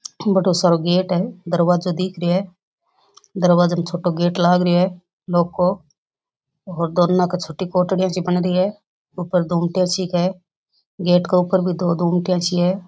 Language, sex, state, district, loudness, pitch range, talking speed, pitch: Rajasthani, female, Rajasthan, Nagaur, -19 LUFS, 175-185 Hz, 180 wpm, 180 Hz